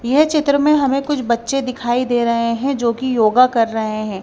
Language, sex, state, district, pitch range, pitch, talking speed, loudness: Hindi, female, Punjab, Kapurthala, 230-275 Hz, 245 Hz, 210 wpm, -17 LUFS